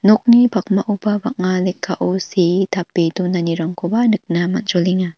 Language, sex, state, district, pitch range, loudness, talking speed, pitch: Garo, female, Meghalaya, North Garo Hills, 180-210 Hz, -17 LUFS, 105 wpm, 185 Hz